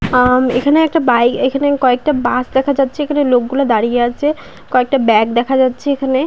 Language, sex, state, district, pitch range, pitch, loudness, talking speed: Bengali, female, West Bengal, Paschim Medinipur, 245-280 Hz, 260 Hz, -14 LUFS, 190 wpm